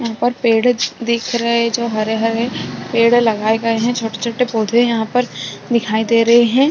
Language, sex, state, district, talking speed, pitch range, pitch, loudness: Hindi, female, Chhattisgarh, Bastar, 170 wpm, 225-240 Hz, 235 Hz, -16 LUFS